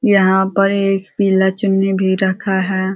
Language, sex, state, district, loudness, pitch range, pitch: Hindi, female, Uttar Pradesh, Ghazipur, -15 LUFS, 190-195 Hz, 190 Hz